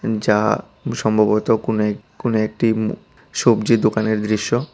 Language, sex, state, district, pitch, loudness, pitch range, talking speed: Bengali, male, Tripura, West Tripura, 110 Hz, -19 LUFS, 110-115 Hz, 125 wpm